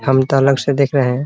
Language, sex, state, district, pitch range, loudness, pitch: Hindi, male, Bihar, Muzaffarpur, 130-140 Hz, -15 LUFS, 135 Hz